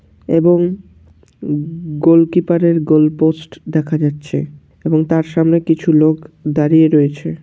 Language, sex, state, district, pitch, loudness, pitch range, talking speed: Bengali, male, West Bengal, Malda, 155 Hz, -14 LUFS, 150-165 Hz, 95 wpm